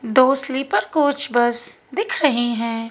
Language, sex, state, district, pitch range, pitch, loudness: Hindi, female, Madhya Pradesh, Bhopal, 235-285 Hz, 255 Hz, -19 LUFS